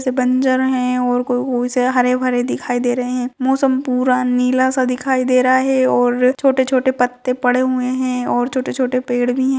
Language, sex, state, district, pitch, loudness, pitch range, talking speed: Hindi, female, Rajasthan, Churu, 255 Hz, -17 LUFS, 250-260 Hz, 180 wpm